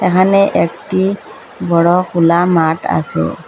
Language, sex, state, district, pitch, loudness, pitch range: Bengali, female, Assam, Hailakandi, 175 Hz, -13 LUFS, 165-185 Hz